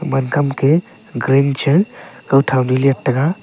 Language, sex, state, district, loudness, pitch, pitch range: Wancho, male, Arunachal Pradesh, Longding, -16 LUFS, 135 Hz, 135-155 Hz